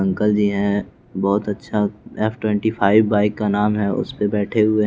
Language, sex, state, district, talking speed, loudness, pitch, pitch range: Hindi, male, Bihar, West Champaran, 210 wpm, -19 LUFS, 105 Hz, 100-110 Hz